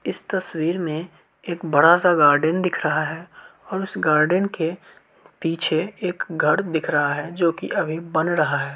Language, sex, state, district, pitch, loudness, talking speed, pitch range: Hindi, male, Uttar Pradesh, Varanasi, 165 Hz, -21 LUFS, 170 wpm, 155-175 Hz